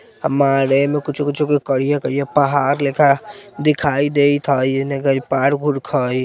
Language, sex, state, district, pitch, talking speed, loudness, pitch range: Bajjika, male, Bihar, Vaishali, 140 Hz, 165 wpm, -17 LUFS, 135-145 Hz